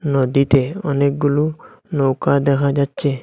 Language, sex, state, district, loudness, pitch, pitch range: Bengali, male, Assam, Hailakandi, -18 LUFS, 140 Hz, 140-145 Hz